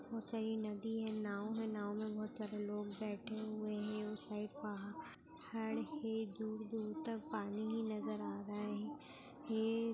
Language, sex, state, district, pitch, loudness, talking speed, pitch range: Hindi, female, Bihar, Madhepura, 215 Hz, -43 LUFS, 165 wpm, 210-225 Hz